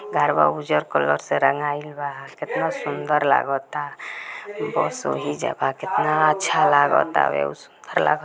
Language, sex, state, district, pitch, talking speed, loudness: Bhojpuri, female, Bihar, Gopalganj, 145 Hz, 125 wpm, -22 LUFS